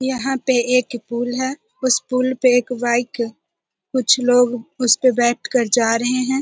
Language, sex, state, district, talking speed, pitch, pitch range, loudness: Hindi, female, Bihar, Jahanabad, 185 wpm, 250 Hz, 240-255 Hz, -18 LUFS